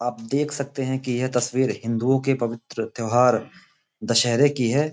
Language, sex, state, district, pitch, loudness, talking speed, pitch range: Hindi, male, Uttar Pradesh, Gorakhpur, 125 Hz, -23 LUFS, 170 wpm, 120-140 Hz